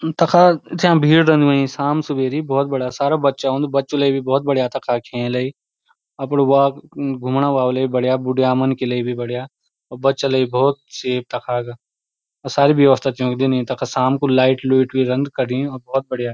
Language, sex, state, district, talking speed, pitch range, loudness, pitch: Garhwali, male, Uttarakhand, Uttarkashi, 185 wpm, 130-140 Hz, -18 LUFS, 135 Hz